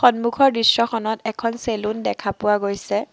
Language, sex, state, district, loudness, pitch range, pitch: Assamese, female, Assam, Sonitpur, -20 LUFS, 210-235 Hz, 225 Hz